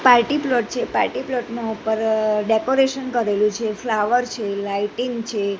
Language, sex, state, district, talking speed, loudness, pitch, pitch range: Gujarati, female, Gujarat, Gandhinagar, 150 wpm, -21 LUFS, 225 Hz, 210-245 Hz